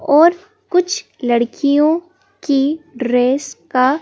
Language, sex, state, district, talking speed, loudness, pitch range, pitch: Hindi, female, Madhya Pradesh, Bhopal, 90 wpm, -16 LUFS, 255-355 Hz, 295 Hz